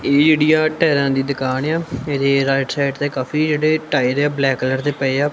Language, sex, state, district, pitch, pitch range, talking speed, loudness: Punjabi, male, Punjab, Kapurthala, 140 Hz, 135-150 Hz, 215 wpm, -17 LUFS